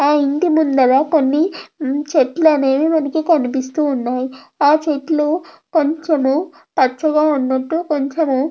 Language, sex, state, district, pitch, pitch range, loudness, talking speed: Telugu, female, Andhra Pradesh, Krishna, 295 Hz, 270-315 Hz, -16 LUFS, 90 wpm